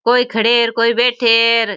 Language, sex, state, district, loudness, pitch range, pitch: Rajasthani, female, Rajasthan, Churu, -13 LUFS, 230-240 Hz, 230 Hz